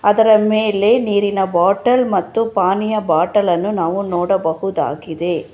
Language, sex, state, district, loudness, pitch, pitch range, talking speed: Kannada, female, Karnataka, Bangalore, -16 LUFS, 200 Hz, 175-215 Hz, 100 wpm